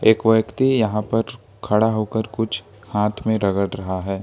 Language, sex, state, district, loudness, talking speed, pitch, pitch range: Hindi, male, Jharkhand, Ranchi, -21 LUFS, 170 wpm, 105 Hz, 100-110 Hz